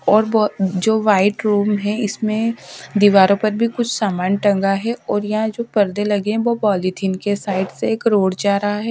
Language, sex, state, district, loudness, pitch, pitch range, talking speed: Hindi, female, Haryana, Rohtak, -18 LUFS, 210 Hz, 200-220 Hz, 200 wpm